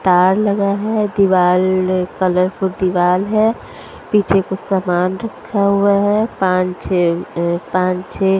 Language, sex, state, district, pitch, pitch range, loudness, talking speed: Hindi, female, Haryana, Charkhi Dadri, 190 Hz, 180-200 Hz, -16 LUFS, 145 wpm